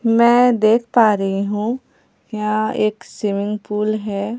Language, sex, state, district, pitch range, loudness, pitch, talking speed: Hindi, female, Bihar, Katihar, 210-230 Hz, -18 LUFS, 215 Hz, 135 wpm